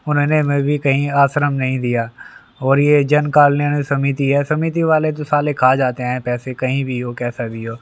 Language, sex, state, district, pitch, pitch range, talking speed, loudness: Hindi, male, Haryana, Rohtak, 140 Hz, 125-145 Hz, 200 wpm, -17 LUFS